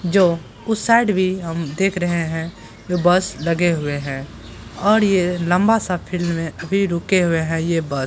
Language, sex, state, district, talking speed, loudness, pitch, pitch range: Hindi, female, Bihar, Purnia, 195 wpm, -19 LUFS, 175 Hz, 160-190 Hz